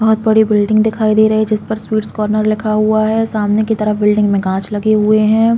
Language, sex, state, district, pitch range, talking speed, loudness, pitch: Hindi, female, Uttar Pradesh, Muzaffarnagar, 210-220 Hz, 245 wpm, -14 LUFS, 215 Hz